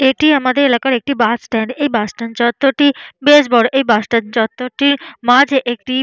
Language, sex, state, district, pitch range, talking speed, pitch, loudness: Bengali, female, West Bengal, Dakshin Dinajpur, 235-280 Hz, 200 wpm, 255 Hz, -14 LUFS